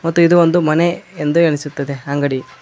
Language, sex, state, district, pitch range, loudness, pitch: Kannada, male, Karnataka, Koppal, 145-170 Hz, -15 LUFS, 160 Hz